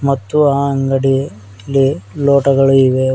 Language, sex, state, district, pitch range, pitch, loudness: Kannada, male, Karnataka, Koppal, 135-140 Hz, 135 Hz, -13 LUFS